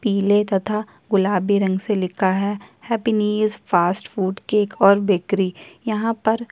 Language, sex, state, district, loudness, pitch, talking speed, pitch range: Hindi, female, Chhattisgarh, Kabirdham, -20 LUFS, 205 Hz, 130 wpm, 195-215 Hz